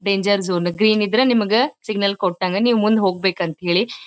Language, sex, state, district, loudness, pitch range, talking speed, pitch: Kannada, female, Karnataka, Dharwad, -18 LUFS, 185-215 Hz, 190 wpm, 200 Hz